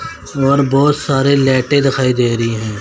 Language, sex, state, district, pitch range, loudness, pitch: Hindi, male, Chandigarh, Chandigarh, 125-140 Hz, -14 LUFS, 135 Hz